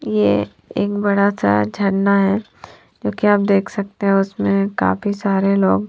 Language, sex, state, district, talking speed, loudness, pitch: Hindi, female, Punjab, Fazilka, 155 wpm, -18 LUFS, 195 Hz